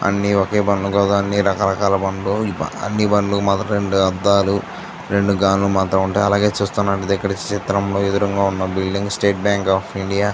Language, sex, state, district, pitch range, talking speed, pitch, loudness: Telugu, male, Andhra Pradesh, Chittoor, 95-100 Hz, 155 wpm, 100 Hz, -18 LUFS